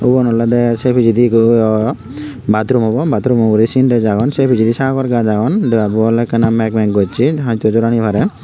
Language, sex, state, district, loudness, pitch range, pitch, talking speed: Chakma, male, Tripura, Unakoti, -13 LUFS, 110-125 Hz, 115 Hz, 190 wpm